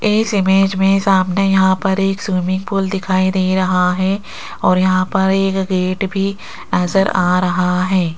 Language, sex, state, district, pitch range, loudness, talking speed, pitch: Hindi, female, Rajasthan, Jaipur, 185-195 Hz, -16 LUFS, 170 wpm, 190 Hz